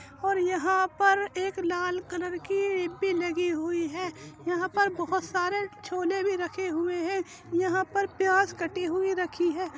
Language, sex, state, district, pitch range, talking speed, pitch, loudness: Hindi, female, Uttar Pradesh, Jyotiba Phule Nagar, 350-385 Hz, 160 wpm, 365 Hz, -28 LUFS